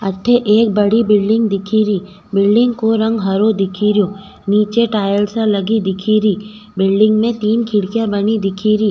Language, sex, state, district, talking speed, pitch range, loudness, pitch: Rajasthani, female, Rajasthan, Nagaur, 160 wpm, 200-220 Hz, -15 LUFS, 210 Hz